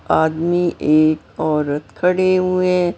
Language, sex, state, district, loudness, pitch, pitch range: Hindi, female, Maharashtra, Mumbai Suburban, -17 LUFS, 170 Hz, 155-180 Hz